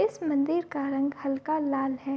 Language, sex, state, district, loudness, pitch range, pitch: Hindi, female, Bihar, Darbhanga, -28 LUFS, 275-310 Hz, 280 Hz